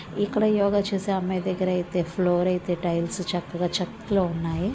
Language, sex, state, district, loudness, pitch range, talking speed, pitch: Telugu, female, Andhra Pradesh, Visakhapatnam, -25 LUFS, 175-195 Hz, 150 wpm, 185 Hz